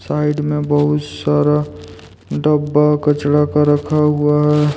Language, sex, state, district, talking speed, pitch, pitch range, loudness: Hindi, male, Jharkhand, Deoghar, 125 wpm, 150 Hz, 110-150 Hz, -15 LUFS